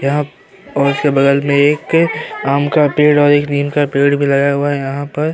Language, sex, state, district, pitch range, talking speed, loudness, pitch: Hindi, male, Uttar Pradesh, Hamirpur, 140-150 Hz, 225 wpm, -14 LUFS, 145 Hz